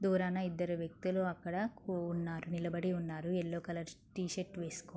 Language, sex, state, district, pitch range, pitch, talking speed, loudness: Telugu, female, Andhra Pradesh, Anantapur, 170-185 Hz, 175 Hz, 155 wpm, -38 LUFS